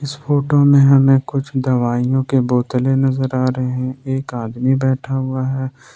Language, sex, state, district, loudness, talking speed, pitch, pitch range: Hindi, male, Jharkhand, Ranchi, -17 LUFS, 160 wpm, 130 Hz, 130-135 Hz